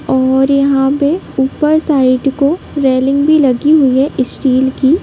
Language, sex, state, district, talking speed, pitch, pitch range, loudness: Hindi, female, Bihar, Sitamarhi, 155 wpm, 275 Hz, 265-295 Hz, -12 LUFS